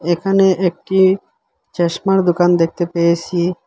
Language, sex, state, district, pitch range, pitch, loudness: Bengali, male, Assam, Hailakandi, 175-190 Hz, 175 Hz, -16 LUFS